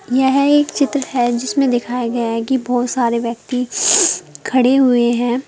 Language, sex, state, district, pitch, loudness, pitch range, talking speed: Hindi, female, Uttar Pradesh, Saharanpur, 250 Hz, -16 LUFS, 240-265 Hz, 165 wpm